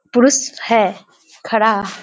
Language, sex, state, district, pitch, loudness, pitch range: Hindi, female, Bihar, Kishanganj, 225 Hz, -15 LUFS, 220-265 Hz